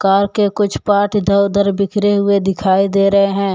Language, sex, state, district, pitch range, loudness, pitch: Hindi, male, Jharkhand, Deoghar, 195-205 Hz, -14 LUFS, 200 Hz